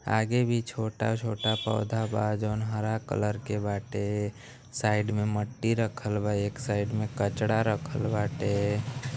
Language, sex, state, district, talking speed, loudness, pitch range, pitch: Bhojpuri, male, Uttar Pradesh, Deoria, 150 wpm, -29 LUFS, 105-115 Hz, 110 Hz